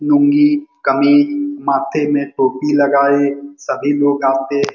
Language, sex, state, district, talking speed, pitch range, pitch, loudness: Hindi, male, Bihar, Lakhisarai, 140 wpm, 140-145 Hz, 145 Hz, -15 LUFS